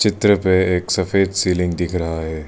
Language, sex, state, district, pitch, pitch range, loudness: Hindi, male, Arunachal Pradesh, Lower Dibang Valley, 90 Hz, 90-95 Hz, -18 LUFS